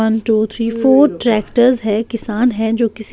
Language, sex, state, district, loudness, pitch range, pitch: Hindi, female, Bihar, West Champaran, -15 LUFS, 220-245 Hz, 230 Hz